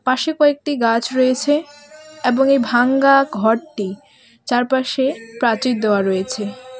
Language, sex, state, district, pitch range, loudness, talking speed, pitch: Bengali, female, West Bengal, Alipurduar, 230-275 Hz, -17 LUFS, 105 wpm, 255 Hz